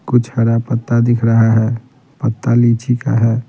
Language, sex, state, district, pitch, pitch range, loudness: Hindi, male, Bihar, Patna, 120 Hz, 115-125 Hz, -15 LUFS